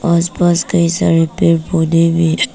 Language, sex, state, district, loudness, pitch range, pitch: Hindi, female, Arunachal Pradesh, Papum Pare, -13 LUFS, 165-175 Hz, 170 Hz